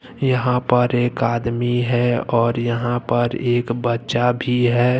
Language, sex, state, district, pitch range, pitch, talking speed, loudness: Hindi, male, Jharkhand, Deoghar, 120-125 Hz, 120 Hz, 145 wpm, -19 LUFS